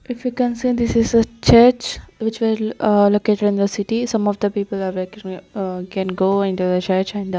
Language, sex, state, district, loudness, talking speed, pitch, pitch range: English, female, Chandigarh, Chandigarh, -18 LUFS, 210 wpm, 205 Hz, 190-230 Hz